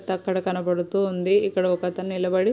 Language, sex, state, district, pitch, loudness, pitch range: Telugu, female, Andhra Pradesh, Srikakulam, 185 Hz, -24 LUFS, 180-190 Hz